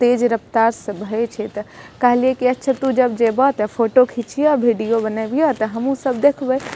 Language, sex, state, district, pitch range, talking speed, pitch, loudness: Maithili, female, Bihar, Madhepura, 225-260 Hz, 160 wpm, 245 Hz, -18 LUFS